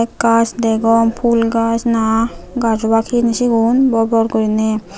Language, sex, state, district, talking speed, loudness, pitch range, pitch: Chakma, female, Tripura, Unakoti, 155 wpm, -15 LUFS, 225-230 Hz, 230 Hz